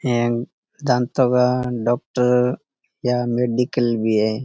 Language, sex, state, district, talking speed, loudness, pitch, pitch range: Rajasthani, male, Rajasthan, Churu, 110 wpm, -20 LUFS, 125 Hz, 120-125 Hz